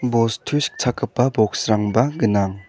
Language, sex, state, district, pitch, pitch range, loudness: Garo, male, Meghalaya, South Garo Hills, 115 Hz, 110-125 Hz, -20 LUFS